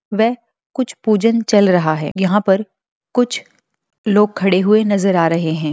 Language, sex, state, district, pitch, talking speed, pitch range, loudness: Hindi, female, Bihar, Bhagalpur, 205 Hz, 170 wpm, 185-225 Hz, -16 LUFS